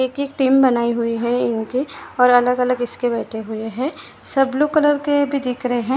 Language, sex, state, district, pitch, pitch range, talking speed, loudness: Hindi, female, Maharashtra, Gondia, 250 Hz, 240-275 Hz, 220 wpm, -19 LUFS